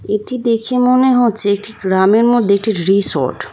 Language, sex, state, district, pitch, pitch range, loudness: Bengali, female, West Bengal, Kolkata, 220 Hz, 200-240 Hz, -14 LUFS